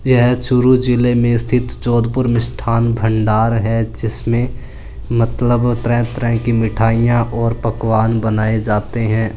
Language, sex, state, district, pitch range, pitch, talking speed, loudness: Hindi, male, Rajasthan, Churu, 115-120 Hz, 115 Hz, 130 wpm, -16 LUFS